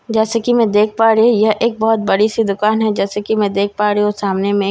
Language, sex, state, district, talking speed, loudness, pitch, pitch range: Hindi, female, Bihar, Katihar, 290 wpm, -15 LUFS, 215 Hz, 205-225 Hz